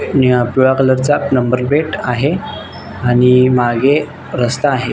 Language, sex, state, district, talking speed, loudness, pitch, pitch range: Marathi, male, Maharashtra, Nagpur, 135 wpm, -14 LUFS, 130 Hz, 125-140 Hz